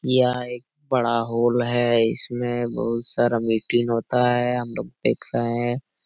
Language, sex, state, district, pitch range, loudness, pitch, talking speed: Hindi, male, Jharkhand, Sahebganj, 115-125 Hz, -22 LUFS, 120 Hz, 150 wpm